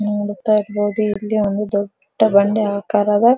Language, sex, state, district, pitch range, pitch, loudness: Kannada, female, Karnataka, Dharwad, 205-215 Hz, 210 Hz, -18 LUFS